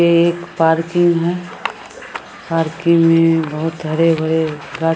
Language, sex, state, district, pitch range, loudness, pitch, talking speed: Maithili, female, Bihar, Samastipur, 160-170 Hz, -16 LUFS, 165 Hz, 110 wpm